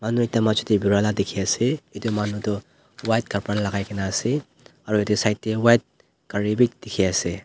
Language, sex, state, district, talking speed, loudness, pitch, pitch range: Nagamese, male, Nagaland, Dimapur, 185 wpm, -23 LUFS, 105 Hz, 100-115 Hz